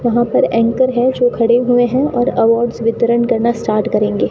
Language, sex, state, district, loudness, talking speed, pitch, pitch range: Hindi, female, Rajasthan, Bikaner, -14 LUFS, 195 wpm, 235 Hz, 230-245 Hz